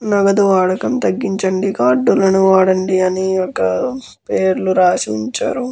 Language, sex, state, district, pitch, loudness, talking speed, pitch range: Telugu, male, Andhra Pradesh, Guntur, 190 Hz, -15 LUFS, 115 wpm, 185-195 Hz